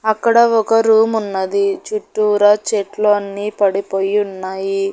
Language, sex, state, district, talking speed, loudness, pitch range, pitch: Telugu, female, Andhra Pradesh, Annamaya, 110 wpm, -16 LUFS, 195-225 Hz, 210 Hz